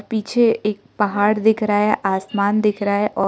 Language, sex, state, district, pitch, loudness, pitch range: Hindi, male, Arunachal Pradesh, Lower Dibang Valley, 210 Hz, -19 LUFS, 205-215 Hz